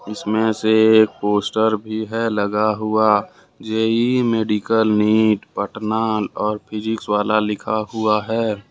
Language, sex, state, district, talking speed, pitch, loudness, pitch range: Hindi, male, Jharkhand, Ranchi, 125 wpm, 110 Hz, -19 LUFS, 105-110 Hz